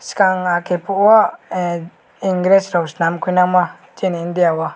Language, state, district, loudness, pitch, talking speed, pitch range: Kokborok, Tripura, West Tripura, -16 LUFS, 180 Hz, 150 wpm, 170-190 Hz